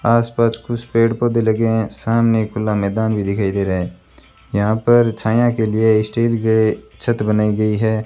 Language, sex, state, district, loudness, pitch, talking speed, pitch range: Hindi, male, Rajasthan, Bikaner, -17 LUFS, 110 Hz, 195 wpm, 105-115 Hz